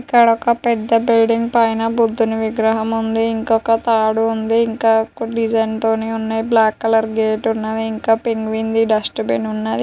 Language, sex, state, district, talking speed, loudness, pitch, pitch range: Telugu, female, Andhra Pradesh, Guntur, 140 wpm, -17 LUFS, 225 Hz, 220-230 Hz